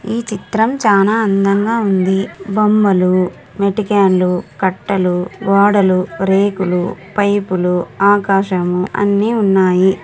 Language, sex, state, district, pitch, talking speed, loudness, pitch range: Telugu, female, Andhra Pradesh, Anantapur, 195 Hz, 85 wpm, -14 LUFS, 185-205 Hz